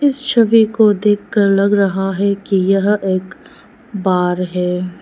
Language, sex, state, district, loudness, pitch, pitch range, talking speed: Hindi, female, Arunachal Pradesh, Lower Dibang Valley, -15 LUFS, 200 Hz, 190-210 Hz, 130 wpm